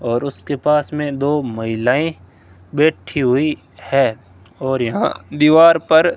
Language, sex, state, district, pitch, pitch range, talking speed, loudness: Hindi, male, Rajasthan, Bikaner, 135 Hz, 115-150 Hz, 135 wpm, -17 LUFS